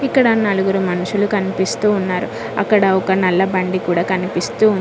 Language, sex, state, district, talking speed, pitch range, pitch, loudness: Telugu, female, Telangana, Mahabubabad, 150 wpm, 185-210 Hz, 190 Hz, -17 LUFS